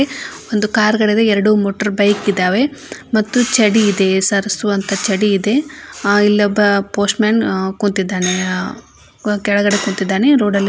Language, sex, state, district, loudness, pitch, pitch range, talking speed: Kannada, female, Karnataka, Belgaum, -15 LUFS, 205 Hz, 200-215 Hz, 120 wpm